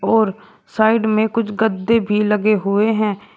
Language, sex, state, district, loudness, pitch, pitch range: Hindi, male, Uttar Pradesh, Shamli, -17 LUFS, 215 Hz, 210-220 Hz